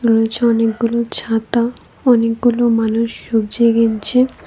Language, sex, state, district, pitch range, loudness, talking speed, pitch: Bengali, female, Tripura, West Tripura, 225-235 Hz, -16 LUFS, 95 wpm, 230 Hz